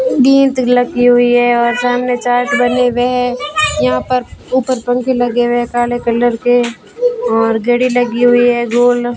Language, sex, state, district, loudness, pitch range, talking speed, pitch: Hindi, female, Rajasthan, Bikaner, -13 LUFS, 240-250 Hz, 165 wpm, 245 Hz